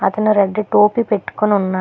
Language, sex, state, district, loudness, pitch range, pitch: Telugu, female, Telangana, Hyderabad, -16 LUFS, 200-215 Hz, 210 Hz